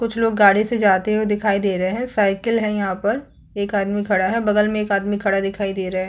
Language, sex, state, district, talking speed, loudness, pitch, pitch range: Hindi, female, Chhattisgarh, Kabirdham, 265 wpm, -19 LUFS, 205 Hz, 195-215 Hz